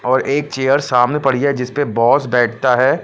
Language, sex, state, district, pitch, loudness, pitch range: Hindi, male, Punjab, Pathankot, 130 Hz, -15 LUFS, 125-140 Hz